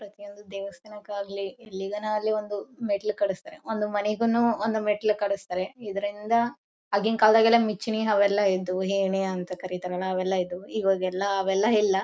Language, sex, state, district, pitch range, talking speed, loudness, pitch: Kannada, female, Karnataka, Bellary, 195-215 Hz, 130 wpm, -26 LUFS, 205 Hz